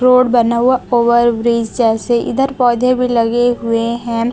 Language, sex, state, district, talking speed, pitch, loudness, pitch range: Hindi, female, Chhattisgarh, Raipur, 165 wpm, 240 Hz, -14 LUFS, 230-250 Hz